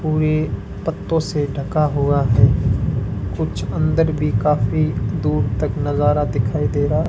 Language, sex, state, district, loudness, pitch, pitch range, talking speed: Hindi, male, Rajasthan, Bikaner, -19 LUFS, 145 Hz, 115-150 Hz, 150 wpm